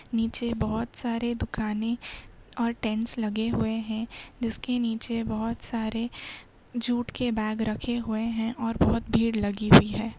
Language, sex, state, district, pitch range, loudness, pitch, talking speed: Hindi, female, Uttar Pradesh, Hamirpur, 220-235 Hz, -27 LUFS, 230 Hz, 145 wpm